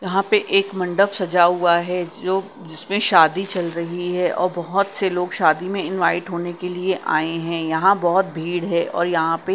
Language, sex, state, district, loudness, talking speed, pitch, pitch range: Hindi, female, Punjab, Kapurthala, -20 LUFS, 200 wpm, 180 Hz, 170-190 Hz